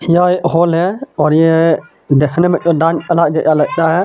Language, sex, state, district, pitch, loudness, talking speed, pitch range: Hindi, male, Jharkhand, Deoghar, 165 Hz, -13 LUFS, 205 wpm, 160-175 Hz